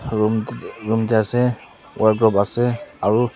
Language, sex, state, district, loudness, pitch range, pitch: Nagamese, male, Nagaland, Dimapur, -19 LUFS, 110-120 Hz, 110 Hz